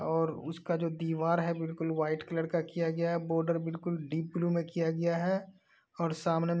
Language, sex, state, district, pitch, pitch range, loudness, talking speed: Hindi, male, Uttar Pradesh, Etah, 165 Hz, 165-170 Hz, -33 LUFS, 220 wpm